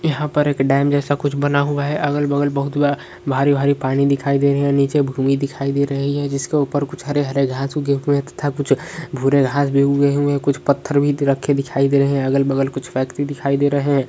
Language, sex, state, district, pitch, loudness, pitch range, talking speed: Hindi, male, West Bengal, Paschim Medinipur, 140 Hz, -18 LUFS, 140-145 Hz, 225 wpm